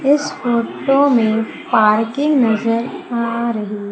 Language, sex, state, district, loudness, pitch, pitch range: Hindi, female, Madhya Pradesh, Umaria, -16 LUFS, 235 Hz, 220-270 Hz